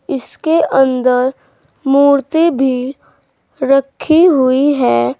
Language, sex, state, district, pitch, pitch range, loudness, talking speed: Hindi, female, Uttar Pradesh, Saharanpur, 270 Hz, 255-290 Hz, -13 LUFS, 80 wpm